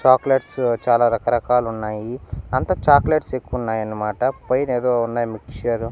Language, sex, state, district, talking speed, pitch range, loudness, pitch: Telugu, male, Andhra Pradesh, Annamaya, 100 wpm, 115-130 Hz, -20 LUFS, 120 Hz